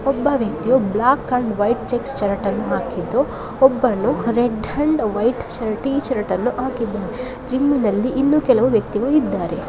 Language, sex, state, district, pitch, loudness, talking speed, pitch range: Kannada, female, Karnataka, Belgaum, 245 Hz, -19 LUFS, 135 wpm, 220-265 Hz